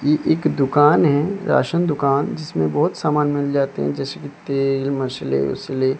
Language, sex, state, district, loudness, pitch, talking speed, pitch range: Hindi, male, Odisha, Sambalpur, -19 LUFS, 140 Hz, 170 wpm, 130-150 Hz